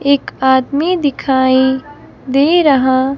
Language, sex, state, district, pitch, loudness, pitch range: Hindi, female, Himachal Pradesh, Shimla, 270 Hz, -13 LUFS, 260-285 Hz